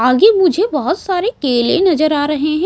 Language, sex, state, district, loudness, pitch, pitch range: Hindi, female, Maharashtra, Mumbai Suburban, -14 LUFS, 330 Hz, 295-385 Hz